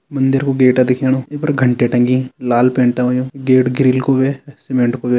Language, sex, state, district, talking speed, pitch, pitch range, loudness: Kumaoni, male, Uttarakhand, Tehri Garhwal, 195 wpm, 130 Hz, 125-135 Hz, -15 LUFS